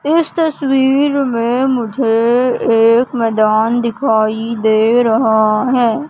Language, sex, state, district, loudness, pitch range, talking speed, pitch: Hindi, female, Madhya Pradesh, Katni, -13 LUFS, 225-265 Hz, 100 wpm, 235 Hz